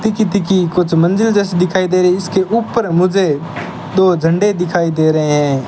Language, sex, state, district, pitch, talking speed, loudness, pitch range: Hindi, male, Rajasthan, Bikaner, 180 Hz, 170 wpm, -14 LUFS, 165-195 Hz